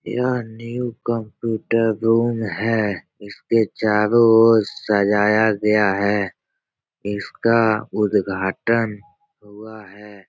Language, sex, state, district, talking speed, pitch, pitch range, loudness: Hindi, male, Bihar, Jahanabad, 85 wpm, 110 Hz, 105-115 Hz, -19 LUFS